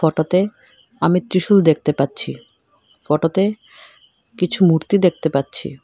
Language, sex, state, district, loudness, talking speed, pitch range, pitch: Bengali, female, Assam, Hailakandi, -18 LUFS, 125 wpm, 155-190 Hz, 175 Hz